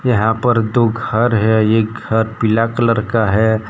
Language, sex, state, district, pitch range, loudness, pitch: Hindi, male, Jharkhand, Deoghar, 110-115 Hz, -15 LUFS, 110 Hz